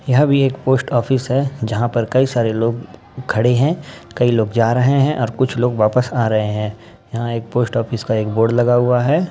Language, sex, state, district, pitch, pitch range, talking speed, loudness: Hindi, male, Uttar Pradesh, Ghazipur, 120 Hz, 115-130 Hz, 225 wpm, -17 LUFS